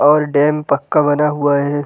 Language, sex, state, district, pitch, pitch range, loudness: Hindi, male, Bihar, Gaya, 145 Hz, 145-150 Hz, -15 LUFS